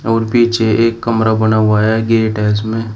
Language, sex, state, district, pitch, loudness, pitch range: Hindi, male, Uttar Pradesh, Shamli, 110 Hz, -13 LUFS, 110-115 Hz